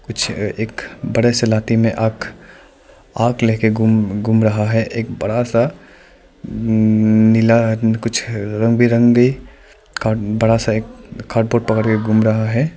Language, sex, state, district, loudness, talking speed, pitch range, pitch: Hindi, male, Arunachal Pradesh, Lower Dibang Valley, -16 LUFS, 145 wpm, 110-115 Hz, 115 Hz